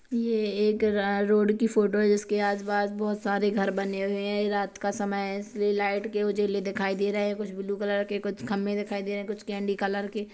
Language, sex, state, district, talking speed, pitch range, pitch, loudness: Hindi, female, Chhattisgarh, Kabirdham, 245 wpm, 200-210 Hz, 205 Hz, -27 LUFS